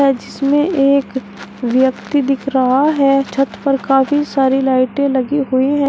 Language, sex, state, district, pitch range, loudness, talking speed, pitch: Hindi, female, Uttar Pradesh, Shamli, 260-280 Hz, -15 LUFS, 145 wpm, 275 Hz